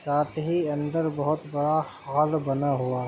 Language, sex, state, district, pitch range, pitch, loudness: Hindi, male, Jharkhand, Sahebganj, 140-155 Hz, 145 Hz, -26 LUFS